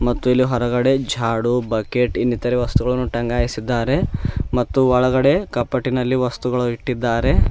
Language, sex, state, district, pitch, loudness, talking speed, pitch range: Kannada, male, Karnataka, Bidar, 125 Hz, -19 LUFS, 105 wpm, 120-125 Hz